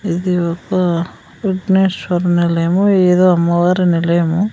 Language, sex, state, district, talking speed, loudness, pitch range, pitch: Telugu, female, Andhra Pradesh, Sri Satya Sai, 95 wpm, -15 LUFS, 170-185 Hz, 180 Hz